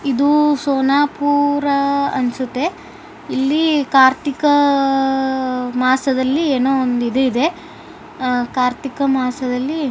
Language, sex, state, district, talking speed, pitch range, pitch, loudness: Kannada, male, Karnataka, Bijapur, 85 wpm, 260-285 Hz, 270 Hz, -17 LUFS